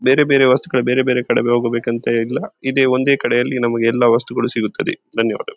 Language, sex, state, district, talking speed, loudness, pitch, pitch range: Kannada, male, Karnataka, Dakshina Kannada, 170 wpm, -17 LUFS, 125 Hz, 120-130 Hz